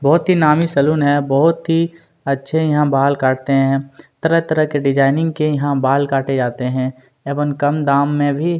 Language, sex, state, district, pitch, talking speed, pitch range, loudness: Hindi, male, Chhattisgarh, Kabirdham, 145 Hz, 180 wpm, 135-160 Hz, -16 LUFS